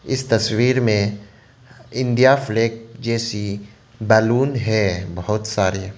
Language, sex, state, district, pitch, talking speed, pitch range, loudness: Hindi, male, Arunachal Pradesh, Lower Dibang Valley, 110 Hz, 100 wpm, 105-125 Hz, -19 LUFS